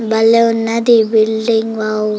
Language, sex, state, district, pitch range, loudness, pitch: Telugu, female, Andhra Pradesh, Chittoor, 220-230 Hz, -13 LUFS, 225 Hz